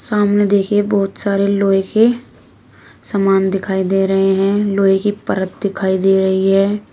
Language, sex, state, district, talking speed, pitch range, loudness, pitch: Hindi, female, Uttar Pradesh, Shamli, 155 wpm, 195-205 Hz, -15 LUFS, 195 Hz